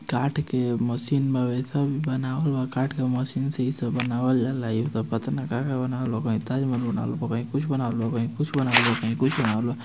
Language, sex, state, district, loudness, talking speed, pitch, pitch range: Bhojpuri, male, Bihar, Gopalganj, -25 LUFS, 45 wpm, 125 Hz, 120-135 Hz